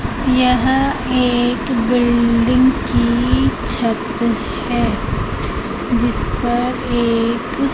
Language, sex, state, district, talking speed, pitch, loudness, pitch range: Hindi, female, Madhya Pradesh, Katni, 75 wpm, 245 Hz, -17 LUFS, 235-250 Hz